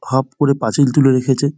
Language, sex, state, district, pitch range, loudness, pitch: Bengali, male, West Bengal, Dakshin Dinajpur, 130-140 Hz, -15 LUFS, 135 Hz